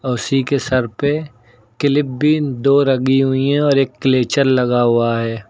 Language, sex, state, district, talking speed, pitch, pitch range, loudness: Hindi, male, Uttar Pradesh, Lucknow, 175 wpm, 135 Hz, 120-140 Hz, -16 LUFS